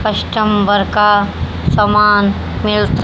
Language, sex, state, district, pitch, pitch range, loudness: Hindi, female, Haryana, Charkhi Dadri, 205 Hz, 195-210 Hz, -13 LUFS